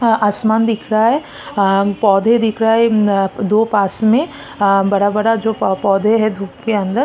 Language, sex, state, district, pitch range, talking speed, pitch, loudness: Hindi, female, Maharashtra, Chandrapur, 200-225 Hz, 185 wpm, 215 Hz, -15 LUFS